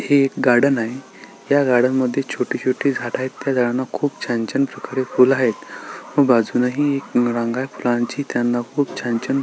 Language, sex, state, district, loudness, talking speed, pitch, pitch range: Marathi, male, Maharashtra, Solapur, -19 LUFS, 195 wpm, 130 Hz, 120-140 Hz